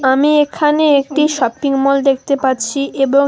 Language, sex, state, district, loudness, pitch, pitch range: Bengali, female, West Bengal, Alipurduar, -14 LUFS, 275 Hz, 270-295 Hz